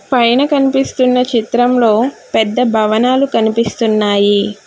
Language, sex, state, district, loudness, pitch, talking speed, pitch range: Telugu, female, Telangana, Hyderabad, -13 LUFS, 235 Hz, 75 wpm, 220-250 Hz